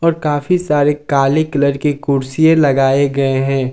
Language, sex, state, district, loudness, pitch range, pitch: Hindi, male, Jharkhand, Garhwa, -14 LUFS, 135-155 Hz, 145 Hz